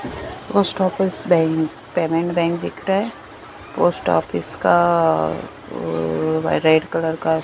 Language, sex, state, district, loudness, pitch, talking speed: Hindi, female, Maharashtra, Mumbai Suburban, -19 LUFS, 160 Hz, 120 wpm